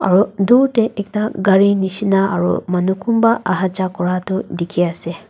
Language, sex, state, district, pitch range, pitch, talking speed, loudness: Nagamese, female, Nagaland, Dimapur, 185-205 Hz, 190 Hz, 145 wpm, -16 LUFS